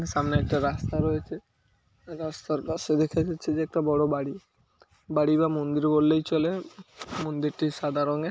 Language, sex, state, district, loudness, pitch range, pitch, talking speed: Bengali, male, West Bengal, Paschim Medinipur, -27 LUFS, 145-160 Hz, 155 Hz, 145 wpm